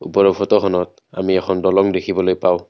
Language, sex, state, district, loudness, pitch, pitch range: Assamese, male, Assam, Kamrup Metropolitan, -17 LUFS, 95 Hz, 90-95 Hz